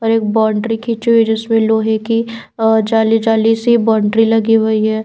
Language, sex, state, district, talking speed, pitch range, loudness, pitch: Hindi, female, Bihar, Patna, 190 wpm, 220-225 Hz, -13 LUFS, 225 Hz